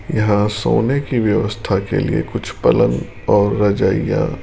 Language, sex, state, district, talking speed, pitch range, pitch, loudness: Hindi, male, Rajasthan, Jaipur, 135 wpm, 105-115 Hz, 105 Hz, -17 LUFS